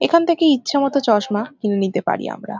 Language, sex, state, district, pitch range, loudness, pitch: Bengali, female, West Bengal, Kolkata, 205-300 Hz, -18 LUFS, 270 Hz